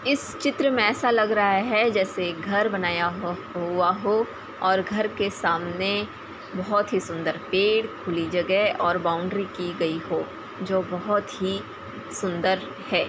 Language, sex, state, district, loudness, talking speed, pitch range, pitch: Hindi, female, Bihar, Darbhanga, -24 LUFS, 155 wpm, 175-210 Hz, 190 Hz